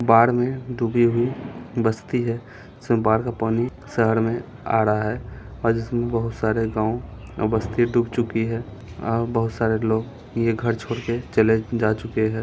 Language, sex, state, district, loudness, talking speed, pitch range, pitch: Hindi, male, Bihar, Muzaffarpur, -23 LUFS, 180 wpm, 110-120 Hz, 115 Hz